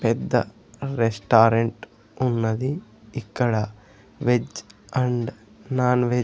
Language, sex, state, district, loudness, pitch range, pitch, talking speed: Telugu, male, Andhra Pradesh, Sri Satya Sai, -23 LUFS, 110-125 Hz, 115 Hz, 75 wpm